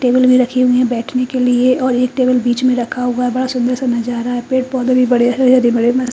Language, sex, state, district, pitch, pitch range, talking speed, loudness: Hindi, female, Haryana, Charkhi Dadri, 250 Hz, 245-255 Hz, 260 wpm, -14 LUFS